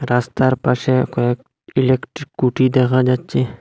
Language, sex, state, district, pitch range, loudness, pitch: Bengali, male, Assam, Hailakandi, 125-130 Hz, -18 LUFS, 130 Hz